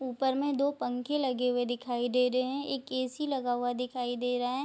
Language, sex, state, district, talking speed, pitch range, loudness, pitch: Hindi, female, Bihar, Bhagalpur, 230 wpm, 245-270 Hz, -31 LUFS, 250 Hz